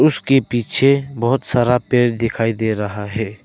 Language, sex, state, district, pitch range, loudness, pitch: Hindi, male, Arunachal Pradesh, Lower Dibang Valley, 110-135 Hz, -17 LUFS, 120 Hz